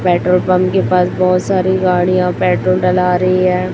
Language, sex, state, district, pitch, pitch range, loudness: Hindi, female, Chhattisgarh, Raipur, 180 Hz, 180-185 Hz, -13 LUFS